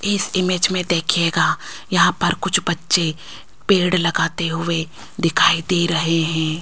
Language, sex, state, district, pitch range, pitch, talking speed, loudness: Hindi, female, Rajasthan, Jaipur, 165-185 Hz, 170 Hz, 135 wpm, -18 LUFS